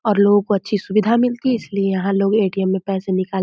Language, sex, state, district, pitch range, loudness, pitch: Hindi, female, Bihar, Muzaffarpur, 190-215 Hz, -18 LUFS, 200 Hz